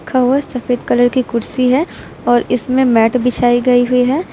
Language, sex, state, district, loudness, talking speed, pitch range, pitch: Hindi, female, Uttar Pradesh, Lucknow, -14 LUFS, 210 wpm, 245-255 Hz, 250 Hz